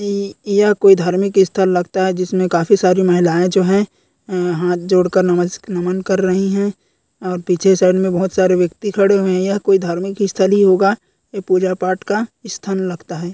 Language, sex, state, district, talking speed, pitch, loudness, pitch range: Hindi, female, Chhattisgarh, Korba, 180 wpm, 190 Hz, -16 LUFS, 180-195 Hz